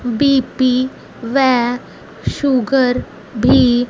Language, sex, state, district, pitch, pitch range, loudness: Hindi, female, Haryana, Rohtak, 255 Hz, 245-265 Hz, -16 LUFS